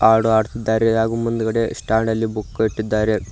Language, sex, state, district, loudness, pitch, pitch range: Kannada, male, Karnataka, Koppal, -19 LUFS, 110 Hz, 110-115 Hz